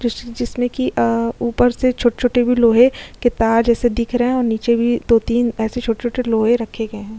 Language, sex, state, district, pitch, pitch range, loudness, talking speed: Hindi, female, Uttar Pradesh, Jyotiba Phule Nagar, 235 Hz, 225-245 Hz, -17 LUFS, 210 wpm